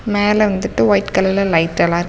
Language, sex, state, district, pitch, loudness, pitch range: Tamil, female, Tamil Nadu, Namakkal, 195 Hz, -15 LUFS, 175-205 Hz